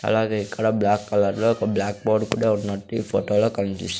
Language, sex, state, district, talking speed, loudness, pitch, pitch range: Telugu, male, Andhra Pradesh, Sri Satya Sai, 210 wpm, -22 LUFS, 105 Hz, 100-110 Hz